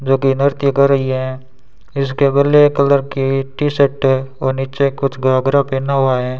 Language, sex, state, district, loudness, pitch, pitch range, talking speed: Hindi, male, Rajasthan, Bikaner, -15 LUFS, 135 Hz, 130-140 Hz, 170 wpm